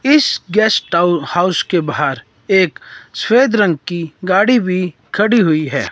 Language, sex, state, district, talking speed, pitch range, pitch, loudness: Hindi, male, Himachal Pradesh, Shimla, 140 wpm, 170-215 Hz, 185 Hz, -15 LUFS